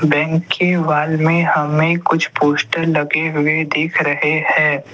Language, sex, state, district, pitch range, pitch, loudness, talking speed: Hindi, male, Assam, Kamrup Metropolitan, 150-165 Hz, 155 Hz, -15 LUFS, 145 wpm